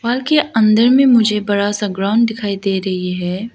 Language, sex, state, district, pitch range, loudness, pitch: Hindi, female, Arunachal Pradesh, Lower Dibang Valley, 195-235 Hz, -15 LUFS, 210 Hz